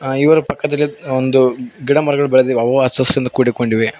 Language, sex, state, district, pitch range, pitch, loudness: Kannada, male, Karnataka, Koppal, 125-145 Hz, 130 Hz, -15 LUFS